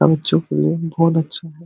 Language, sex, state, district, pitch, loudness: Hindi, male, Jharkhand, Sahebganj, 165 Hz, -18 LUFS